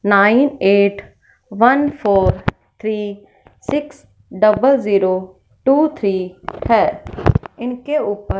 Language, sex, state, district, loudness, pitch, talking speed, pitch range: Hindi, female, Punjab, Fazilka, -16 LUFS, 210 Hz, 95 wpm, 200-270 Hz